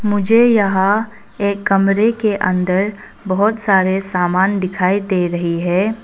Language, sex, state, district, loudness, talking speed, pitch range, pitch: Hindi, female, Arunachal Pradesh, Papum Pare, -16 LUFS, 130 wpm, 185-210 Hz, 195 Hz